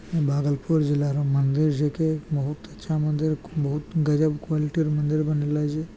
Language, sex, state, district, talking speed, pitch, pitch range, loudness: Maithili, male, Bihar, Bhagalpur, 150 wpm, 150 Hz, 145-155 Hz, -24 LUFS